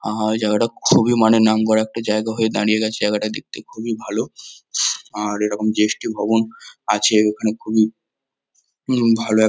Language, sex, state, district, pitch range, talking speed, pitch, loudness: Bengali, male, West Bengal, North 24 Parganas, 105-110 Hz, 150 wpm, 110 Hz, -19 LUFS